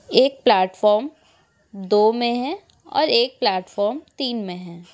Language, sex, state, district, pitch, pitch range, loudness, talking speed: Hindi, female, Uttar Pradesh, Etah, 215 Hz, 190-270 Hz, -20 LUFS, 135 wpm